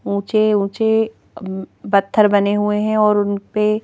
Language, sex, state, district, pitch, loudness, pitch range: Hindi, female, Madhya Pradesh, Bhopal, 210 Hz, -17 LUFS, 200-215 Hz